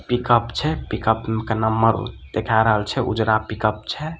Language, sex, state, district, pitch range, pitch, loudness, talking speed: Maithili, male, Bihar, Samastipur, 110-120 Hz, 110 Hz, -21 LUFS, 155 wpm